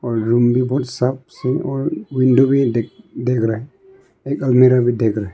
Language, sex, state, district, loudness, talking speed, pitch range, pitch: Hindi, male, Arunachal Pradesh, Longding, -17 LUFS, 190 wpm, 120-135 Hz, 125 Hz